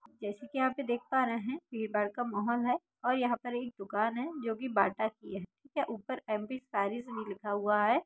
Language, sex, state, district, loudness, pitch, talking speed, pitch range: Bhojpuri, female, Bihar, Saran, -34 LUFS, 235 Hz, 240 wpm, 210-260 Hz